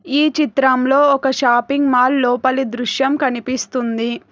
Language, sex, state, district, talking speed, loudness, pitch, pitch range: Telugu, female, Telangana, Hyderabad, 110 wpm, -16 LUFS, 260 Hz, 245-275 Hz